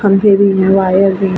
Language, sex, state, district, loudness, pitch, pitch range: Hindi, female, Bihar, Vaishali, -10 LUFS, 195 Hz, 190-200 Hz